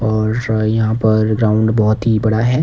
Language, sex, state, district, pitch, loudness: Hindi, male, Himachal Pradesh, Shimla, 110 Hz, -15 LUFS